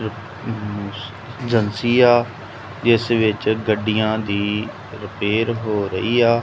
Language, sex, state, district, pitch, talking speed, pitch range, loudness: Punjabi, male, Punjab, Kapurthala, 110 Hz, 95 wpm, 105-115 Hz, -19 LUFS